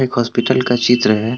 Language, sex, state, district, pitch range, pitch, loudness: Hindi, male, Jharkhand, Deoghar, 120-125 Hz, 120 Hz, -15 LUFS